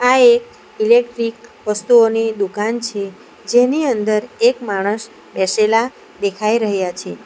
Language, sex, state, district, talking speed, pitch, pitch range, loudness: Gujarati, female, Gujarat, Valsad, 115 wpm, 225 Hz, 210-240 Hz, -16 LUFS